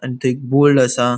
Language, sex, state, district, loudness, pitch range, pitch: Konkani, male, Goa, North and South Goa, -15 LUFS, 125-135 Hz, 125 Hz